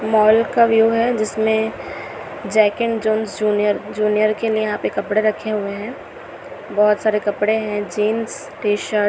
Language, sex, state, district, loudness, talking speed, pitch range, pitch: Hindi, female, Chhattisgarh, Raipur, -18 LUFS, 170 wpm, 210-220 Hz, 215 Hz